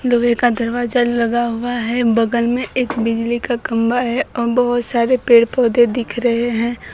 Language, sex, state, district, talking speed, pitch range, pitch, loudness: Hindi, female, Bihar, Kaimur, 175 wpm, 235-245 Hz, 240 Hz, -17 LUFS